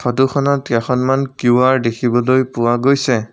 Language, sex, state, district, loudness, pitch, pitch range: Assamese, male, Assam, Sonitpur, -15 LUFS, 130 Hz, 120-135 Hz